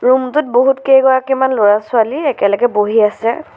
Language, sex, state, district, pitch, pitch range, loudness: Assamese, female, Assam, Sonitpur, 255 Hz, 220-265 Hz, -13 LUFS